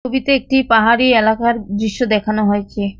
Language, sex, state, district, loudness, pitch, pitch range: Bengali, female, West Bengal, Cooch Behar, -15 LUFS, 225 Hz, 215-250 Hz